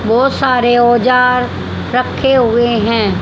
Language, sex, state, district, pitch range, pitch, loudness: Hindi, female, Haryana, Charkhi Dadri, 235-250 Hz, 240 Hz, -12 LUFS